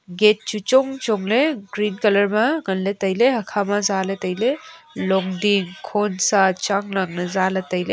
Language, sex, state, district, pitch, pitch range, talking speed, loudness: Wancho, female, Arunachal Pradesh, Longding, 205 Hz, 190-220 Hz, 100 wpm, -20 LUFS